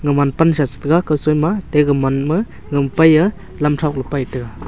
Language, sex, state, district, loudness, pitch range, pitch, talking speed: Wancho, male, Arunachal Pradesh, Longding, -16 LUFS, 140-160 Hz, 150 Hz, 215 wpm